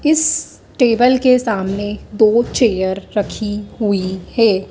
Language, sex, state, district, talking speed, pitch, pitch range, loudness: Hindi, female, Madhya Pradesh, Dhar, 115 wpm, 215 Hz, 200-245 Hz, -16 LUFS